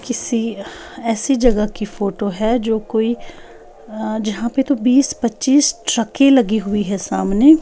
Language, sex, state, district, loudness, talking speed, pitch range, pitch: Hindi, female, Bihar, Patna, -17 LUFS, 140 wpm, 215-265 Hz, 230 Hz